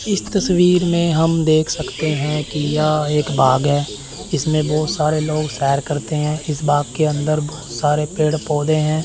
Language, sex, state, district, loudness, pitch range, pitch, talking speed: Hindi, male, Chandigarh, Chandigarh, -18 LUFS, 150-155 Hz, 155 Hz, 185 wpm